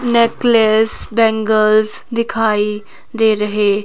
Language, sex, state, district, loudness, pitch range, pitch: Hindi, female, Himachal Pradesh, Shimla, -14 LUFS, 210-230 Hz, 220 Hz